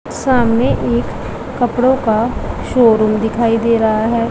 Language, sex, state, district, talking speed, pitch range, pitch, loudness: Hindi, female, Punjab, Pathankot, 125 wpm, 225-245 Hz, 235 Hz, -15 LUFS